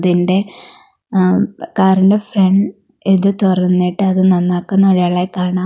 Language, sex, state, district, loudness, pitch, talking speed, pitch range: Malayalam, female, Kerala, Kollam, -14 LUFS, 190 Hz, 105 wpm, 180-195 Hz